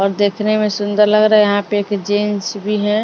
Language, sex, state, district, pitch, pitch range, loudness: Hindi, female, Maharashtra, Mumbai Suburban, 205 Hz, 205-210 Hz, -15 LUFS